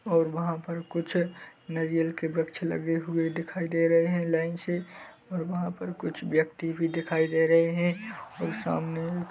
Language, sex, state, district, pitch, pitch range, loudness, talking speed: Hindi, male, Chhattisgarh, Bilaspur, 165 Hz, 165-175 Hz, -29 LUFS, 180 wpm